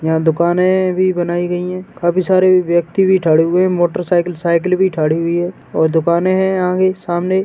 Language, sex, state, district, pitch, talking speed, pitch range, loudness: Hindi, male, Uttar Pradesh, Etah, 175 Hz, 195 wpm, 170-185 Hz, -15 LUFS